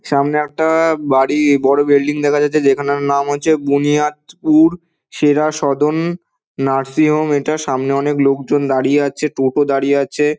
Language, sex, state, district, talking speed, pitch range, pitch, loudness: Bengali, male, West Bengal, Dakshin Dinajpur, 140 wpm, 140-155 Hz, 145 Hz, -15 LUFS